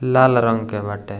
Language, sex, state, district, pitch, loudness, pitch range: Bhojpuri, male, Bihar, East Champaran, 115 Hz, -18 LUFS, 105-125 Hz